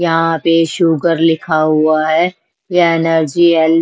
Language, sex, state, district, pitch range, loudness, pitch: Hindi, female, Bihar, West Champaran, 160-170 Hz, -13 LUFS, 165 Hz